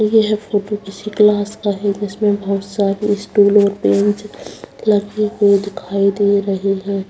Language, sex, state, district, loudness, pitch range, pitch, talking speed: Hindi, female, Bihar, Saharsa, -16 LUFS, 200-210 Hz, 205 Hz, 295 wpm